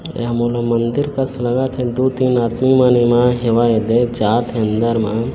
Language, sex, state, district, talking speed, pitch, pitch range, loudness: Hindi, male, Chhattisgarh, Bilaspur, 170 wpm, 120 Hz, 115-130 Hz, -16 LUFS